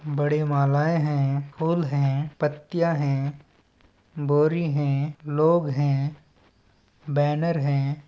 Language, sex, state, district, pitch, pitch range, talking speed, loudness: Chhattisgarhi, male, Chhattisgarh, Balrampur, 145 Hz, 140-150 Hz, 95 wpm, -24 LUFS